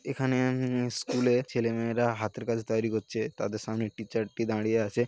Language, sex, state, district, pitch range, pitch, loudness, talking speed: Bengali, male, West Bengal, Paschim Medinipur, 110-125 Hz, 115 Hz, -30 LUFS, 165 wpm